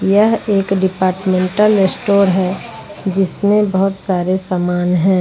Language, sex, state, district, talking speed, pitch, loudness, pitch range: Hindi, female, Jharkhand, Ranchi, 115 wpm, 190 Hz, -15 LUFS, 185-200 Hz